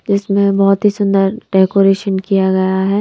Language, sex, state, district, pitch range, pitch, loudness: Hindi, female, Punjab, Kapurthala, 190-200 Hz, 195 Hz, -13 LUFS